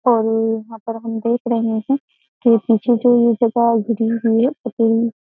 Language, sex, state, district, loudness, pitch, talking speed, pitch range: Hindi, female, Uttar Pradesh, Jyotiba Phule Nagar, -17 LUFS, 230 Hz, 195 wpm, 225-235 Hz